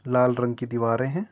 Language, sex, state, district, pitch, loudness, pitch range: Hindi, male, Uttar Pradesh, Jyotiba Phule Nagar, 125 Hz, -24 LUFS, 120-130 Hz